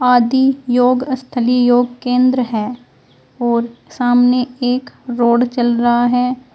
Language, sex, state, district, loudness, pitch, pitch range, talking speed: Hindi, female, Uttar Pradesh, Shamli, -15 LUFS, 245 Hz, 240-250 Hz, 110 wpm